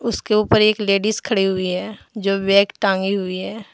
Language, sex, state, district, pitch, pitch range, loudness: Hindi, female, Jharkhand, Deoghar, 200 Hz, 195-215 Hz, -18 LUFS